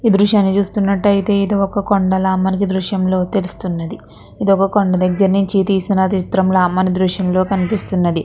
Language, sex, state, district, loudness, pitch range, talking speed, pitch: Telugu, female, Andhra Pradesh, Chittoor, -15 LUFS, 185-200 Hz, 175 wpm, 195 Hz